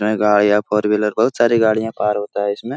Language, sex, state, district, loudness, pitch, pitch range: Hindi, male, Bihar, Supaul, -17 LUFS, 105 Hz, 105-110 Hz